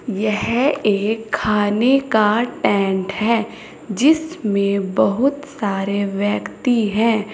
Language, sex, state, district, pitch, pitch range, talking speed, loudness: Hindi, female, Uttar Pradesh, Saharanpur, 215 Hz, 200-240 Hz, 90 wpm, -18 LUFS